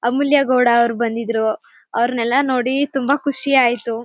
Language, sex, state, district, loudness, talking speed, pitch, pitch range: Kannada, female, Karnataka, Mysore, -17 LUFS, 135 wpm, 245 Hz, 235-275 Hz